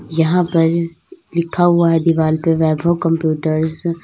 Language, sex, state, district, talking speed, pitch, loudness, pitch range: Hindi, female, Uttar Pradesh, Lalitpur, 150 wpm, 165 Hz, -16 LUFS, 160-170 Hz